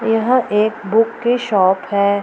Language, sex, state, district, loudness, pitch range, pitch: Hindi, female, Bihar, Purnia, -16 LUFS, 200-230 Hz, 220 Hz